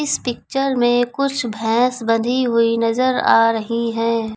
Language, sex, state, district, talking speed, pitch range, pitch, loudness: Hindi, female, Uttar Pradesh, Lucknow, 150 wpm, 230-255 Hz, 235 Hz, -18 LUFS